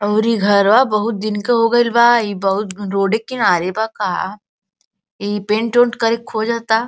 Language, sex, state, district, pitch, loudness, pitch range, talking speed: Hindi, female, Uttar Pradesh, Gorakhpur, 220 Hz, -16 LUFS, 205-230 Hz, 190 wpm